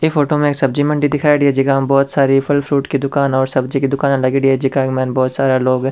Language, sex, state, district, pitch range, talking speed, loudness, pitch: Rajasthani, male, Rajasthan, Churu, 135-145 Hz, 285 wpm, -15 LUFS, 135 Hz